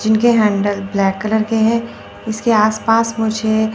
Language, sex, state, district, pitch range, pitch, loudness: Hindi, female, Chandigarh, Chandigarh, 215-225 Hz, 220 Hz, -16 LUFS